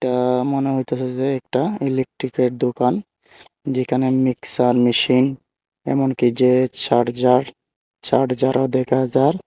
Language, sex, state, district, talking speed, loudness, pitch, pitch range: Bengali, male, Tripura, Unakoti, 110 wpm, -19 LUFS, 130 Hz, 125-130 Hz